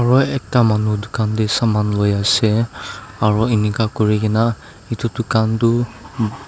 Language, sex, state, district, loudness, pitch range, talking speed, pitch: Nagamese, male, Nagaland, Dimapur, -18 LUFS, 105-115 Hz, 120 wpm, 110 Hz